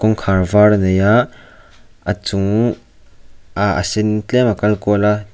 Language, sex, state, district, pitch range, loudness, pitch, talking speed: Mizo, male, Mizoram, Aizawl, 95-105 Hz, -15 LUFS, 105 Hz, 170 wpm